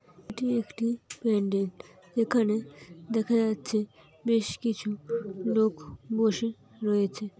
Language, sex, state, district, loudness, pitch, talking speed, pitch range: Bengali, female, West Bengal, North 24 Parganas, -29 LUFS, 215 Hz, 90 wpm, 195-230 Hz